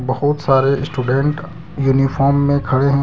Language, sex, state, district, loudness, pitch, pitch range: Hindi, male, Jharkhand, Deoghar, -16 LUFS, 140 Hz, 135-145 Hz